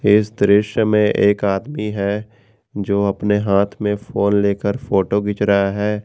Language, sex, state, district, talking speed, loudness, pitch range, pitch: Hindi, male, Jharkhand, Garhwa, 160 wpm, -18 LUFS, 100-105 Hz, 100 Hz